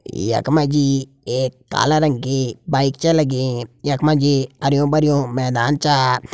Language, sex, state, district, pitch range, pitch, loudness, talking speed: Garhwali, male, Uttarakhand, Tehri Garhwal, 130-150 Hz, 135 Hz, -18 LUFS, 140 wpm